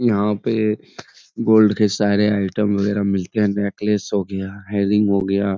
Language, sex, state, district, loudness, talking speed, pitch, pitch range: Hindi, male, Uttar Pradesh, Etah, -19 LUFS, 170 wpm, 100 Hz, 100-105 Hz